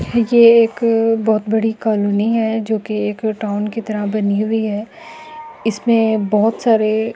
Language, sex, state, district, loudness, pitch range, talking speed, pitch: Hindi, female, Delhi, New Delhi, -16 LUFS, 215-230 Hz, 160 wpm, 220 Hz